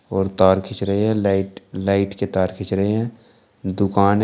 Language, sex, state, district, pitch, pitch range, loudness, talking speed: Hindi, male, Uttar Pradesh, Shamli, 100 Hz, 95-105 Hz, -20 LUFS, 200 wpm